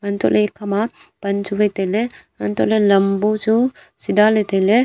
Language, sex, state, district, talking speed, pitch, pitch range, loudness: Wancho, female, Arunachal Pradesh, Longding, 175 wpm, 205 Hz, 200-215 Hz, -18 LUFS